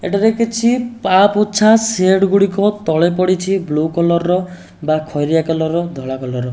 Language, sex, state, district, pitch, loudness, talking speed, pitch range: Odia, male, Odisha, Nuapada, 185 Hz, -15 LUFS, 145 wpm, 160-205 Hz